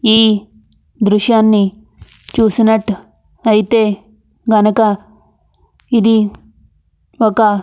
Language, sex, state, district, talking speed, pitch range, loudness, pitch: Telugu, female, Andhra Pradesh, Anantapur, 55 wpm, 210-220 Hz, -13 LUFS, 215 Hz